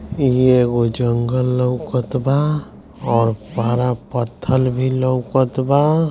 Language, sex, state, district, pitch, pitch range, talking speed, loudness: Hindi, male, Bihar, East Champaran, 125 Hz, 120-130 Hz, 120 wpm, -18 LUFS